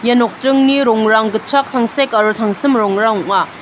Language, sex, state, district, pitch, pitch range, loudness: Garo, female, Meghalaya, North Garo Hills, 225 Hz, 220-270 Hz, -14 LUFS